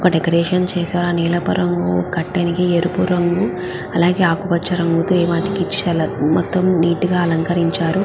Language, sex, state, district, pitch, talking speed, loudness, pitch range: Telugu, female, Andhra Pradesh, Visakhapatnam, 175 Hz, 150 wpm, -17 LUFS, 170-180 Hz